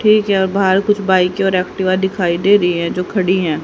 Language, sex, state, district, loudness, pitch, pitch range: Hindi, female, Haryana, Jhajjar, -15 LUFS, 190 Hz, 180-195 Hz